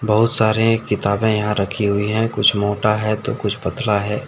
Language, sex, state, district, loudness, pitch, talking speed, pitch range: Hindi, male, Jharkhand, Deoghar, -18 LUFS, 105 Hz, 195 wpm, 105-110 Hz